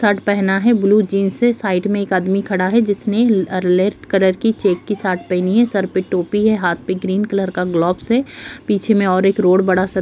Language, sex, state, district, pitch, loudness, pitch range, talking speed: Hindi, female, Bihar, Jahanabad, 195 Hz, -16 LUFS, 185-210 Hz, 240 wpm